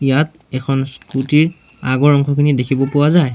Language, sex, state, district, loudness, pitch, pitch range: Assamese, male, Assam, Sonitpur, -16 LUFS, 140 Hz, 135-150 Hz